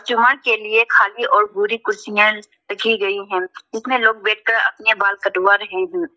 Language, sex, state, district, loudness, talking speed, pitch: Hindi, female, Arunachal Pradesh, Lower Dibang Valley, -17 LUFS, 165 wpm, 220 Hz